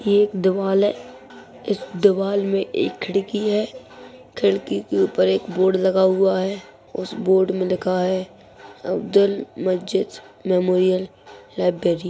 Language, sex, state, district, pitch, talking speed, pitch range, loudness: Hindi, female, Bihar, Purnia, 190 Hz, 140 wpm, 185-200 Hz, -21 LUFS